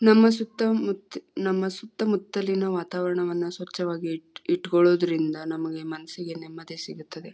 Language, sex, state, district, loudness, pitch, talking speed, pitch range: Kannada, female, Karnataka, Gulbarga, -26 LUFS, 180 Hz, 115 wpm, 165-195 Hz